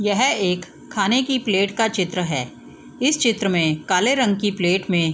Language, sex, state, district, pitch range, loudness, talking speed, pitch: Hindi, female, Bihar, East Champaran, 180-235 Hz, -20 LUFS, 200 wpm, 195 Hz